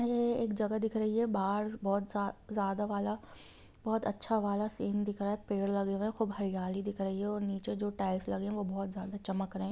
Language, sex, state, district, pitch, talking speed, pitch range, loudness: Hindi, female, Jharkhand, Jamtara, 205 Hz, 235 wpm, 195-215 Hz, -34 LUFS